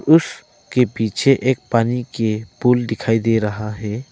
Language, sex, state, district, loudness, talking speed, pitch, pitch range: Hindi, male, Arunachal Pradesh, Lower Dibang Valley, -19 LUFS, 145 wpm, 115 Hz, 110-125 Hz